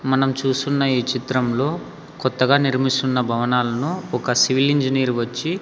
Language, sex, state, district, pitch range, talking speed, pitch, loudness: Telugu, male, Andhra Pradesh, Sri Satya Sai, 125-140 Hz, 115 wpm, 130 Hz, -20 LUFS